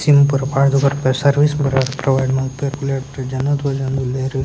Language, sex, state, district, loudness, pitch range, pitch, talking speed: Tulu, male, Karnataka, Dakshina Kannada, -17 LUFS, 130-140 Hz, 135 Hz, 120 wpm